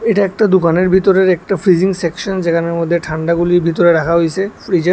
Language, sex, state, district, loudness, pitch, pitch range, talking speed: Bengali, male, Tripura, West Tripura, -14 LUFS, 175 Hz, 170-190 Hz, 180 wpm